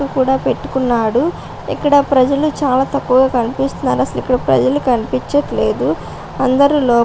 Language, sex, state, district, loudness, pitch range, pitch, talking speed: Telugu, female, Andhra Pradesh, Visakhapatnam, -15 LUFS, 250-280 Hz, 265 Hz, 120 wpm